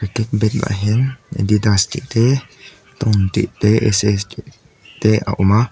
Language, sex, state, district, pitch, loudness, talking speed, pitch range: Mizo, male, Mizoram, Aizawl, 110 Hz, -17 LUFS, 145 wpm, 105-115 Hz